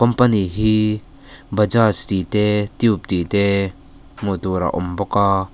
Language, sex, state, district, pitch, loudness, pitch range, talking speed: Mizo, male, Mizoram, Aizawl, 100 Hz, -18 LUFS, 95-110 Hz, 140 wpm